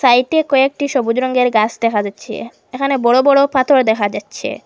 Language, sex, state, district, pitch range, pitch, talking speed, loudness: Bengali, female, Assam, Hailakandi, 230-275 Hz, 255 Hz, 165 wpm, -15 LUFS